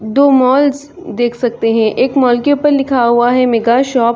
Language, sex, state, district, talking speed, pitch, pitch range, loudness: Hindi, female, Chhattisgarh, Sarguja, 215 wpm, 250 Hz, 235-275 Hz, -12 LUFS